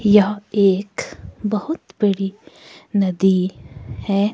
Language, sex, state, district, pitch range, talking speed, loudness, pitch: Hindi, female, Himachal Pradesh, Shimla, 190-210 Hz, 85 wpm, -20 LUFS, 200 Hz